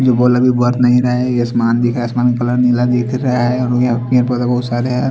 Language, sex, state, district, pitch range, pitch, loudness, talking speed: Hindi, male, Chandigarh, Chandigarh, 120-125 Hz, 125 Hz, -14 LUFS, 190 wpm